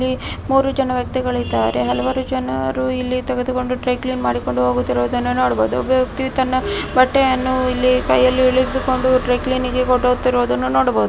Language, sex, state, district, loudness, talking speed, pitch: Kannada, female, Karnataka, Mysore, -18 LUFS, 135 wpm, 255 Hz